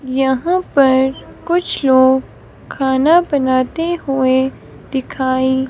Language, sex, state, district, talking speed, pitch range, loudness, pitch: Hindi, female, Himachal Pradesh, Shimla, 85 wpm, 260-290 Hz, -15 LUFS, 265 Hz